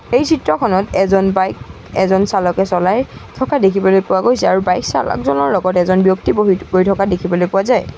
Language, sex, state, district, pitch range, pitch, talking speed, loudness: Assamese, female, Assam, Sonitpur, 180-195 Hz, 190 Hz, 175 wpm, -14 LUFS